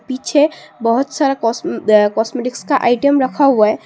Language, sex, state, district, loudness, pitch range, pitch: Hindi, female, Assam, Sonitpur, -15 LUFS, 230-280 Hz, 255 Hz